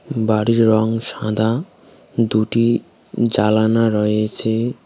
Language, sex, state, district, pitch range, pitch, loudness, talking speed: Bengali, male, West Bengal, Cooch Behar, 110-115 Hz, 110 Hz, -18 LUFS, 75 wpm